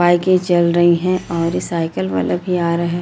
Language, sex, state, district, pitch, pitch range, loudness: Hindi, female, Chhattisgarh, Raipur, 175 Hz, 170-180 Hz, -17 LUFS